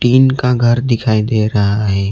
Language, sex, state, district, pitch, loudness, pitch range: Hindi, male, West Bengal, Alipurduar, 115 Hz, -14 LUFS, 105-125 Hz